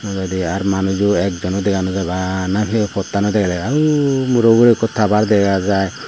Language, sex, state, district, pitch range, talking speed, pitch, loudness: Chakma, male, Tripura, Unakoti, 95-110 Hz, 160 wpm, 100 Hz, -16 LUFS